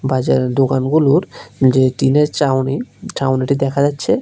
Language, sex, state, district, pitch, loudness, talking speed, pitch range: Bengali, male, Tripura, West Tripura, 135 Hz, -16 LUFS, 115 wpm, 130-140 Hz